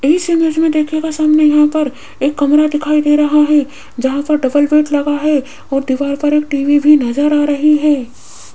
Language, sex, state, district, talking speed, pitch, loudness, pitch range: Hindi, female, Rajasthan, Jaipur, 205 wpm, 295 Hz, -13 LUFS, 285-300 Hz